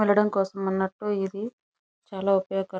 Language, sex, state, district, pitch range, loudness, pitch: Telugu, female, Andhra Pradesh, Chittoor, 190-205 Hz, -27 LUFS, 195 Hz